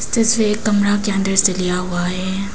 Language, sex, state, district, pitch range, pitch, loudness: Hindi, female, Arunachal Pradesh, Papum Pare, 185-210 Hz, 195 Hz, -17 LUFS